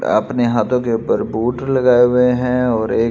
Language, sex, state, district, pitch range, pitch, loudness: Hindi, male, Delhi, New Delhi, 115-125 Hz, 125 Hz, -16 LUFS